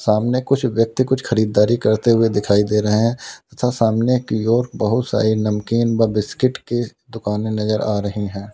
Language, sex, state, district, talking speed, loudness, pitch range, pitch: Hindi, male, Uttar Pradesh, Lalitpur, 185 wpm, -18 LUFS, 105-120 Hz, 115 Hz